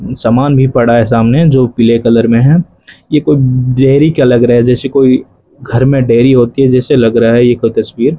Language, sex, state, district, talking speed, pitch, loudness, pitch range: Hindi, male, Rajasthan, Bikaner, 235 wpm, 125 Hz, -9 LUFS, 120-135 Hz